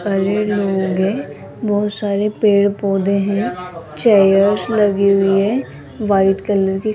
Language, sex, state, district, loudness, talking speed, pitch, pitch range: Hindi, female, Rajasthan, Jaipur, -16 LUFS, 130 wpm, 200 Hz, 195-210 Hz